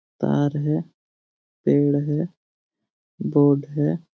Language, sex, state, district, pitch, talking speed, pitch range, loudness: Hindi, male, Jharkhand, Jamtara, 145 Hz, 85 wpm, 145-150 Hz, -22 LUFS